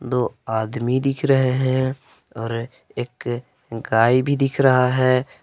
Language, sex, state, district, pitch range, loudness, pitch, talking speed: Hindi, male, Jharkhand, Palamu, 120-130 Hz, -20 LUFS, 125 Hz, 130 wpm